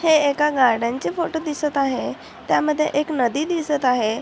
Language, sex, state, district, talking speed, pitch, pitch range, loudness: Marathi, female, Maharashtra, Chandrapur, 170 wpm, 290 Hz, 255-305 Hz, -21 LUFS